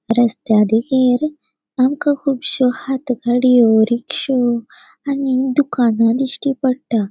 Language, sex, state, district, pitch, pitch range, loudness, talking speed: Konkani, female, Goa, North and South Goa, 255 Hz, 235-275 Hz, -16 LUFS, 95 wpm